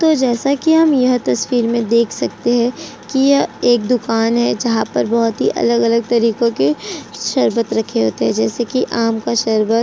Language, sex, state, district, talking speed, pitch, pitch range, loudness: Hindi, female, Uttar Pradesh, Jyotiba Phule Nagar, 165 wpm, 235 Hz, 225-250 Hz, -16 LUFS